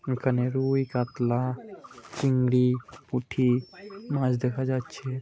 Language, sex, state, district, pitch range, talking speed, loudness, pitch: Bengali, male, West Bengal, Purulia, 125-130 Hz, 90 wpm, -27 LUFS, 130 Hz